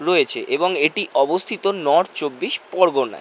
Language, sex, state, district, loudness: Bengali, male, West Bengal, North 24 Parganas, -19 LUFS